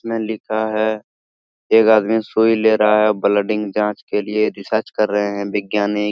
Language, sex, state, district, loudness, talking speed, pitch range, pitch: Hindi, male, Jharkhand, Sahebganj, -17 LUFS, 175 wpm, 105-110 Hz, 105 Hz